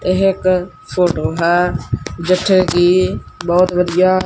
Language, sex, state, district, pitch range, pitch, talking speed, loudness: Punjabi, male, Punjab, Kapurthala, 170-185 Hz, 180 Hz, 115 wpm, -15 LUFS